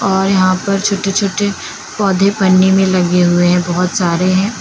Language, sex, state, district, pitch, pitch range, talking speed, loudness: Hindi, female, Uttar Pradesh, Lucknow, 190 Hz, 180-195 Hz, 180 wpm, -13 LUFS